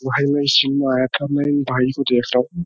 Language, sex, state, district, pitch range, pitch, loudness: Hindi, male, Uttar Pradesh, Jyotiba Phule Nagar, 130-145 Hz, 135 Hz, -18 LUFS